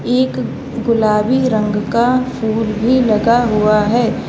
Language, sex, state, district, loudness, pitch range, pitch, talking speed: Hindi, female, Uttar Pradesh, Lalitpur, -15 LUFS, 215-245 Hz, 230 Hz, 125 wpm